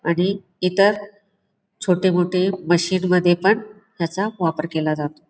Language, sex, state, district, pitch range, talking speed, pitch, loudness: Marathi, female, Maharashtra, Pune, 175-200 Hz, 125 wpm, 185 Hz, -20 LUFS